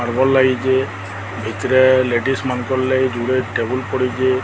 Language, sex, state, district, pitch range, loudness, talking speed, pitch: Odia, male, Odisha, Sambalpur, 120-130 Hz, -17 LUFS, 120 wpm, 130 Hz